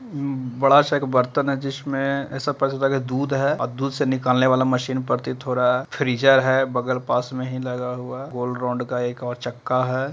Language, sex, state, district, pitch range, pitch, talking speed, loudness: Hindi, male, Bihar, Gaya, 125-135 Hz, 130 Hz, 220 wpm, -22 LUFS